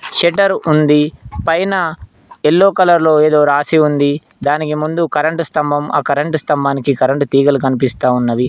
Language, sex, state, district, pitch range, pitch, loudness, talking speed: Telugu, male, Telangana, Mahabubabad, 140-160 Hz, 150 Hz, -14 LUFS, 140 wpm